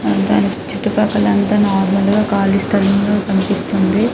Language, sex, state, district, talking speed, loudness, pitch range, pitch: Telugu, female, Telangana, Karimnagar, 160 wpm, -15 LUFS, 195-205 Hz, 200 Hz